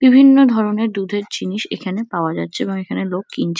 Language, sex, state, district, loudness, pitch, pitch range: Bengali, female, West Bengal, Kolkata, -17 LUFS, 205 Hz, 185-225 Hz